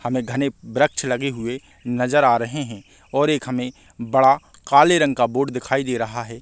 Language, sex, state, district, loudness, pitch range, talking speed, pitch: Hindi, male, Chhattisgarh, Bastar, -20 LUFS, 120-140 Hz, 195 wpm, 125 Hz